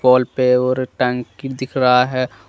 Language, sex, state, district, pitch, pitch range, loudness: Hindi, male, Jharkhand, Deoghar, 125 Hz, 125-130 Hz, -17 LUFS